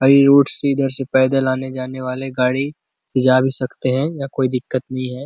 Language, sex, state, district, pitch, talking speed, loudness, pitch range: Hindi, male, Chhattisgarh, Bastar, 130 Hz, 215 wpm, -17 LUFS, 130-135 Hz